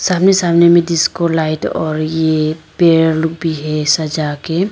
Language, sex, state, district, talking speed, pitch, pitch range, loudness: Hindi, female, Arunachal Pradesh, Papum Pare, 155 wpm, 160 Hz, 155-170 Hz, -14 LUFS